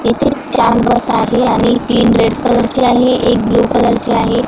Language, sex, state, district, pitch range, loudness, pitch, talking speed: Marathi, female, Maharashtra, Gondia, 235-245 Hz, -12 LUFS, 240 Hz, 200 wpm